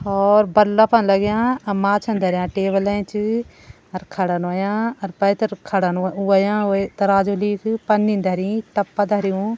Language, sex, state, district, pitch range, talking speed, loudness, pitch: Garhwali, female, Uttarakhand, Tehri Garhwal, 195-210 Hz, 140 wpm, -19 LUFS, 200 Hz